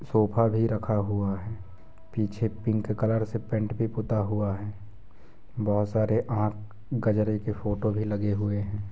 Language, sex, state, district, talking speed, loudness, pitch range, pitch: Hindi, male, Jharkhand, Jamtara, 155 wpm, -28 LUFS, 105-110 Hz, 105 Hz